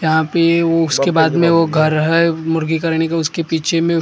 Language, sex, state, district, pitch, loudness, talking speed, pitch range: Hindi, male, Maharashtra, Gondia, 165 Hz, -15 LUFS, 210 wpm, 160-165 Hz